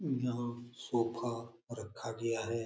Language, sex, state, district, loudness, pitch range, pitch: Hindi, male, Bihar, Jamui, -38 LUFS, 115-120 Hz, 115 Hz